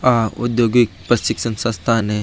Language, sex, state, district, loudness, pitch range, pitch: Marwari, male, Rajasthan, Nagaur, -18 LUFS, 110-120 Hz, 115 Hz